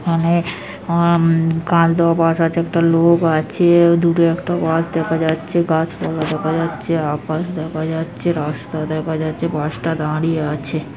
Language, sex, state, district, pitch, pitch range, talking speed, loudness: Bengali, female, West Bengal, Jhargram, 165 Hz, 155-170 Hz, 150 wpm, -17 LUFS